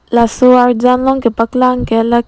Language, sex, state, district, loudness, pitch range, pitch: Karbi, female, Assam, Karbi Anglong, -11 LUFS, 235-250 Hz, 245 Hz